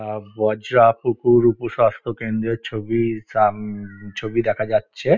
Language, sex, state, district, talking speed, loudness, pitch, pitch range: Bengali, male, West Bengal, Dakshin Dinajpur, 115 wpm, -20 LUFS, 110 Hz, 105-115 Hz